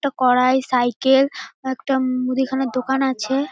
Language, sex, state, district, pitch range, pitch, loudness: Bengali, female, West Bengal, North 24 Parganas, 255-270 Hz, 265 Hz, -19 LUFS